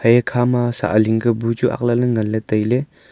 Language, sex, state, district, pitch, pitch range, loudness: Wancho, male, Arunachal Pradesh, Longding, 120 Hz, 110-120 Hz, -18 LUFS